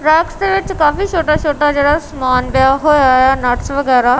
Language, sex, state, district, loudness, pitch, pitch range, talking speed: Punjabi, female, Punjab, Kapurthala, -13 LUFS, 290 Hz, 265-315 Hz, 185 wpm